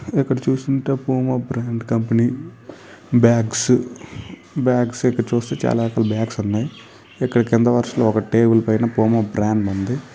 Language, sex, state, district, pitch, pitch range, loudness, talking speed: Telugu, male, Andhra Pradesh, Srikakulam, 115 Hz, 115-125 Hz, -19 LUFS, 125 wpm